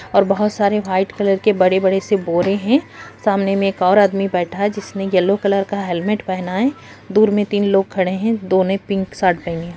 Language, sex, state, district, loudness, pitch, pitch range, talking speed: Hindi, female, Bihar, Jahanabad, -17 LUFS, 195 Hz, 185-205 Hz, 240 wpm